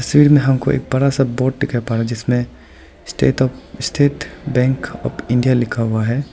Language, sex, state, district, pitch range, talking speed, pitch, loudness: Hindi, male, Arunachal Pradesh, Lower Dibang Valley, 120-135 Hz, 180 wpm, 130 Hz, -17 LUFS